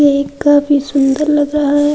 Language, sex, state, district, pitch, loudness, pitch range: Hindi, female, Uttar Pradesh, Budaun, 290 Hz, -13 LUFS, 285-295 Hz